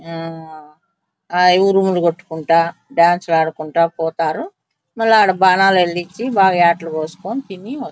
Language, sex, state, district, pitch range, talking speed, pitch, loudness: Telugu, female, Andhra Pradesh, Anantapur, 160-195 Hz, 130 wpm, 175 Hz, -16 LUFS